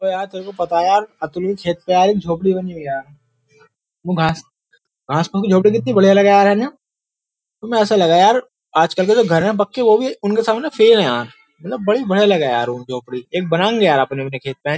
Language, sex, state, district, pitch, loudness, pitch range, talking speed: Hindi, male, Uttar Pradesh, Jyotiba Phule Nagar, 185 Hz, -16 LUFS, 160-210 Hz, 245 wpm